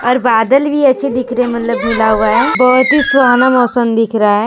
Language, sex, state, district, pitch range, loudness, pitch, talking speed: Hindi, female, Jharkhand, Deoghar, 230-260 Hz, -11 LUFS, 245 Hz, 240 wpm